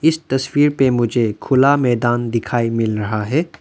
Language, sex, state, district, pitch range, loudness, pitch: Hindi, male, Arunachal Pradesh, Lower Dibang Valley, 115-140 Hz, -17 LUFS, 120 Hz